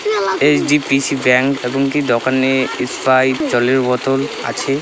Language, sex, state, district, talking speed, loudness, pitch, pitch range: Bengali, male, West Bengal, Paschim Medinipur, 160 wpm, -15 LUFS, 135 Hz, 125-140 Hz